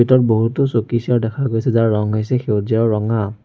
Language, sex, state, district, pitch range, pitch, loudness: Assamese, male, Assam, Sonitpur, 110-125 Hz, 115 Hz, -17 LUFS